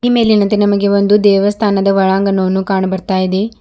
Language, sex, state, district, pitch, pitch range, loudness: Kannada, female, Karnataka, Bidar, 200 Hz, 190-210 Hz, -13 LUFS